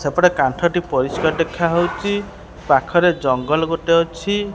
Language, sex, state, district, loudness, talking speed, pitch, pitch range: Odia, male, Odisha, Khordha, -18 LUFS, 120 wpm, 165 Hz, 150-175 Hz